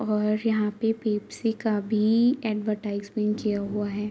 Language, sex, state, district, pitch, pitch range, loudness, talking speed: Hindi, female, Uttar Pradesh, Varanasi, 215 Hz, 210-220 Hz, -26 LUFS, 145 wpm